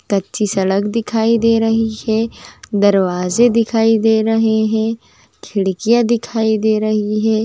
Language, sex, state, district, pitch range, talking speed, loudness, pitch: Magahi, female, Bihar, Gaya, 210-225 Hz, 130 wpm, -16 LUFS, 220 Hz